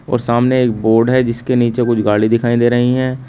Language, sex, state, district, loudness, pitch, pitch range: Hindi, male, Uttar Pradesh, Shamli, -14 LUFS, 120 Hz, 115-125 Hz